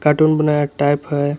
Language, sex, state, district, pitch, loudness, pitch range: Hindi, male, Jharkhand, Garhwa, 150 Hz, -17 LUFS, 145-150 Hz